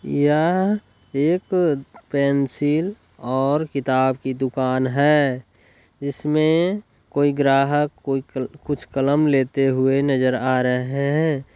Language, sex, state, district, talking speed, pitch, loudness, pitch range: Hindi, male, Bihar, Lakhisarai, 110 wpm, 140 Hz, -21 LUFS, 130-150 Hz